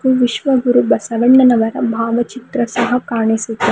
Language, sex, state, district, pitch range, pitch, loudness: Kannada, female, Karnataka, Bidar, 230-250 Hz, 240 Hz, -14 LUFS